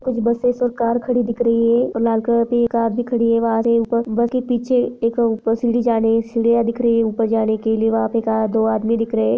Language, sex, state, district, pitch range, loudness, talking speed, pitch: Hindi, female, Jharkhand, Jamtara, 225-235 Hz, -18 LUFS, 205 wpm, 230 Hz